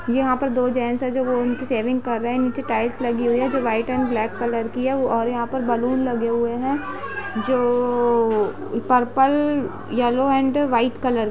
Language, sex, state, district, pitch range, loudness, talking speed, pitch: Hindi, female, Uttar Pradesh, Budaun, 235-260 Hz, -21 LUFS, 195 wpm, 245 Hz